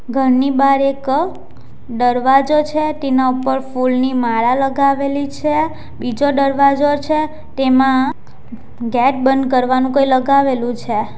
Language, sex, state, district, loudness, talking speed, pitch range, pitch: Gujarati, female, Gujarat, Valsad, -15 LUFS, 115 wpm, 255-280 Hz, 270 Hz